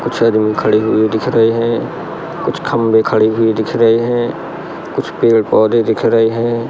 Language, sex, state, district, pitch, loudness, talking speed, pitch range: Hindi, male, Madhya Pradesh, Katni, 115 Hz, -14 LUFS, 170 wpm, 110-115 Hz